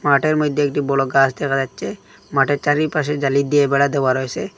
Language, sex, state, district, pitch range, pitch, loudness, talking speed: Bengali, male, Assam, Hailakandi, 135-145 Hz, 140 Hz, -18 LUFS, 185 wpm